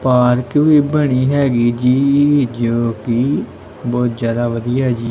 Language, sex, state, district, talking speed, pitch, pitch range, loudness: Punjabi, male, Punjab, Kapurthala, 130 wpm, 125 Hz, 120-140 Hz, -15 LUFS